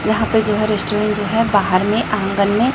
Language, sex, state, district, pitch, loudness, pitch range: Hindi, female, Chhattisgarh, Raipur, 210 Hz, -17 LUFS, 205-220 Hz